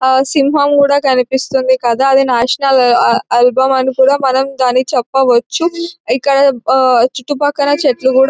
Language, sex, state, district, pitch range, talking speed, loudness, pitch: Telugu, male, Telangana, Nalgonda, 255-280 Hz, 100 wpm, -12 LUFS, 265 Hz